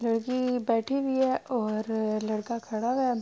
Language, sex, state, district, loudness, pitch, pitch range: Urdu, female, Andhra Pradesh, Anantapur, -28 LUFS, 235 Hz, 220-255 Hz